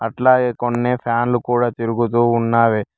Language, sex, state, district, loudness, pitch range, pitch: Telugu, male, Telangana, Mahabubabad, -17 LUFS, 115-120 Hz, 120 Hz